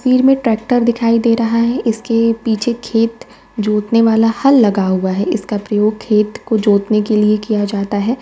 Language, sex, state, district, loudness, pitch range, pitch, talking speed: Hindi, female, Uttar Pradesh, Varanasi, -14 LUFS, 210-230 Hz, 225 Hz, 195 wpm